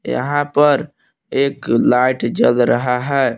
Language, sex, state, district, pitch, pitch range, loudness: Hindi, male, Jharkhand, Palamu, 140 Hz, 125-145 Hz, -16 LUFS